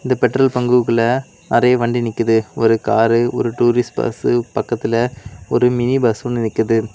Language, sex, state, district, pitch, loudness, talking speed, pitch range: Tamil, male, Tamil Nadu, Kanyakumari, 120 Hz, -17 LUFS, 155 wpm, 115-125 Hz